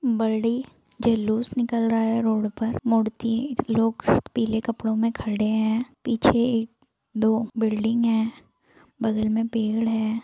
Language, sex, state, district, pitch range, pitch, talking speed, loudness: Hindi, female, Bihar, Gaya, 220-235 Hz, 225 Hz, 135 wpm, -24 LUFS